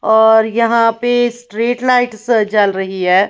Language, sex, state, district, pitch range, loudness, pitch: Hindi, female, Maharashtra, Washim, 215-240 Hz, -13 LUFS, 230 Hz